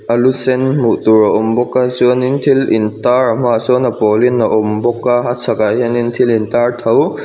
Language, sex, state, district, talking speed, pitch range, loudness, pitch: Mizo, male, Mizoram, Aizawl, 255 wpm, 115-125 Hz, -13 LUFS, 120 Hz